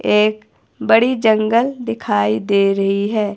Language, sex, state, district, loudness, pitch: Hindi, female, Himachal Pradesh, Shimla, -16 LUFS, 200 Hz